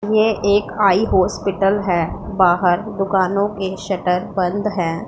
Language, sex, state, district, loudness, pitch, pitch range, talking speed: Hindi, female, Punjab, Pathankot, -18 LUFS, 195 Hz, 180-205 Hz, 130 wpm